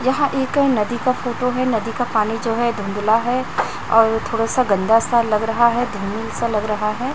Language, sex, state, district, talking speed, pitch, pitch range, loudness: Hindi, female, Chhattisgarh, Raipur, 220 wpm, 230 Hz, 215-250 Hz, -19 LUFS